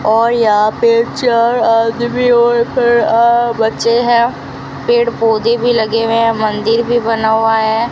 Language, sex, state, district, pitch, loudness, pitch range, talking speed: Hindi, female, Rajasthan, Bikaner, 230 Hz, -12 LUFS, 225-240 Hz, 135 wpm